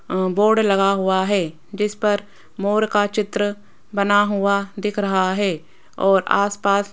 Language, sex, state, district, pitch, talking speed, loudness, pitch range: Hindi, female, Rajasthan, Jaipur, 200 Hz, 155 wpm, -20 LUFS, 195-205 Hz